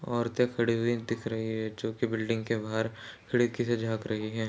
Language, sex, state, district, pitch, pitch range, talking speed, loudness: Hindi, male, Goa, North and South Goa, 115 Hz, 110-120 Hz, 200 wpm, -31 LUFS